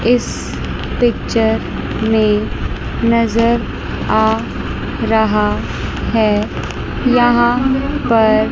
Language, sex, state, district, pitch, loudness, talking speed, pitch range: Hindi, female, Chandigarh, Chandigarh, 230 Hz, -16 LUFS, 65 wpm, 220-240 Hz